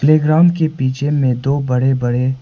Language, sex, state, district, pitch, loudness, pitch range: Hindi, male, Arunachal Pradesh, Papum Pare, 135 Hz, -15 LUFS, 130-155 Hz